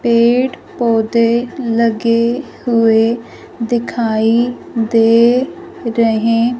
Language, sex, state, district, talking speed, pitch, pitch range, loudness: Hindi, female, Punjab, Fazilka, 65 wpm, 235 Hz, 230-240 Hz, -14 LUFS